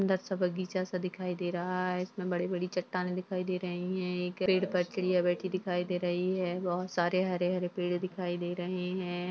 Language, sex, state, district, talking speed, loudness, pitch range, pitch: Hindi, female, Uttarakhand, Tehri Garhwal, 185 wpm, -33 LUFS, 180-185 Hz, 180 Hz